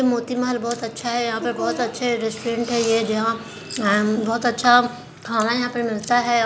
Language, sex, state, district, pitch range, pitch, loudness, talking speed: Hindi, female, Bihar, Jahanabad, 225-245 Hz, 235 Hz, -21 LUFS, 205 wpm